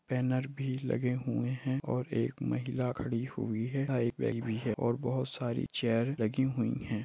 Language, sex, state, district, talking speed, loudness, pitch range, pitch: Hindi, male, Jharkhand, Sahebganj, 170 wpm, -33 LUFS, 115-130 Hz, 125 Hz